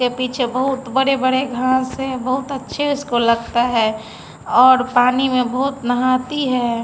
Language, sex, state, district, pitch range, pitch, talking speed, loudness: Hindi, female, Bihar, Patna, 245-265 Hz, 255 Hz, 150 wpm, -17 LUFS